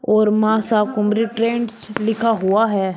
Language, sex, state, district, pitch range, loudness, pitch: Hindi, male, Uttar Pradesh, Shamli, 210-225 Hz, -18 LUFS, 220 Hz